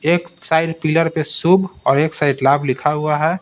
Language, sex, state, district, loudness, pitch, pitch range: Hindi, male, Bihar, Patna, -17 LUFS, 155 Hz, 150-165 Hz